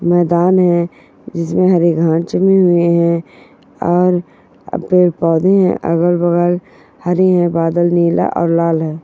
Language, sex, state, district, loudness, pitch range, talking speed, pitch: Hindi, female, Bihar, Purnia, -14 LUFS, 170-180 Hz, 125 wpm, 175 Hz